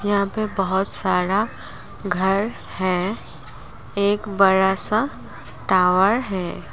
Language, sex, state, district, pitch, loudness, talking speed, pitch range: Hindi, female, Assam, Kamrup Metropolitan, 195 Hz, -19 LUFS, 100 wpm, 190-205 Hz